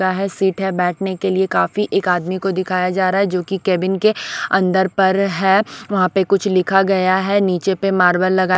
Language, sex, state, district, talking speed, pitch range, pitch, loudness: Hindi, female, Odisha, Sambalpur, 215 wpm, 185-195 Hz, 190 Hz, -17 LUFS